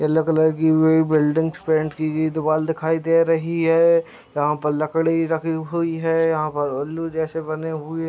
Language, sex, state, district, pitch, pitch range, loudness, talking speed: Hindi, male, Uttar Pradesh, Deoria, 160 Hz, 155-165 Hz, -20 LUFS, 190 wpm